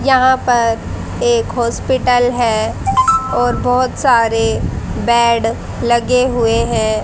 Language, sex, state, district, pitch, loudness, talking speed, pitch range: Hindi, female, Haryana, Jhajjar, 235 Hz, -14 LUFS, 100 wpm, 225-255 Hz